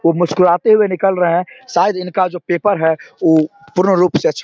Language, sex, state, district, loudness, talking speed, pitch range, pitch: Hindi, male, Bihar, Samastipur, -15 LUFS, 230 wpm, 170-195 Hz, 180 Hz